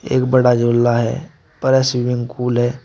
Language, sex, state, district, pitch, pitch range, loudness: Hindi, male, Uttar Pradesh, Shamli, 125 Hz, 120-130 Hz, -16 LUFS